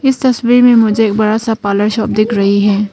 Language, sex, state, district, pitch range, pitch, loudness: Hindi, female, Arunachal Pradesh, Papum Pare, 205-235 Hz, 220 Hz, -11 LUFS